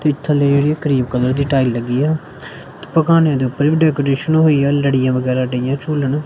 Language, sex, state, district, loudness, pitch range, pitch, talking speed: Punjabi, male, Punjab, Kapurthala, -16 LUFS, 130-150 Hz, 140 Hz, 180 wpm